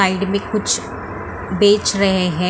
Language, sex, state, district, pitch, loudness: Hindi, female, Maharashtra, Mumbai Suburban, 185 Hz, -17 LUFS